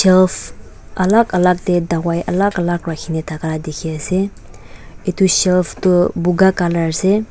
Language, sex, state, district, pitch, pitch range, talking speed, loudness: Nagamese, female, Nagaland, Dimapur, 175 Hz, 160-185 Hz, 140 wpm, -16 LUFS